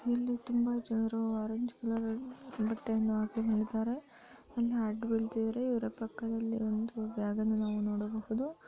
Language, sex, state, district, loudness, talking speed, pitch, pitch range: Kannada, female, Karnataka, Dharwad, -35 LUFS, 105 wpm, 225 Hz, 220-240 Hz